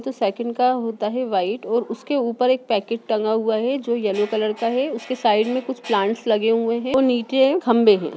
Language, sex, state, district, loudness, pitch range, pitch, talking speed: Hindi, female, Bihar, Sitamarhi, -21 LUFS, 220-255 Hz, 230 Hz, 230 wpm